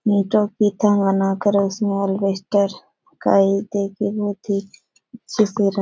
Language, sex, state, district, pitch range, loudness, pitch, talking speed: Hindi, female, Bihar, Jahanabad, 195-210 Hz, -20 LUFS, 200 Hz, 145 wpm